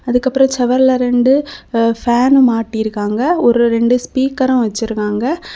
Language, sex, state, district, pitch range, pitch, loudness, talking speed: Tamil, female, Tamil Nadu, Kanyakumari, 230-265 Hz, 245 Hz, -14 LUFS, 95 wpm